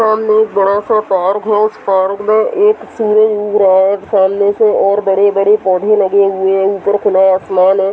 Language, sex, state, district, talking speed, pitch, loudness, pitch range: Hindi, female, Bihar, Madhepura, 195 wpm, 200 Hz, -12 LUFS, 195-215 Hz